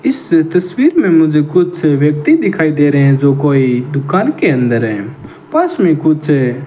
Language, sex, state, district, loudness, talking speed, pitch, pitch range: Hindi, male, Rajasthan, Bikaner, -12 LUFS, 190 wpm, 155 Hz, 140-180 Hz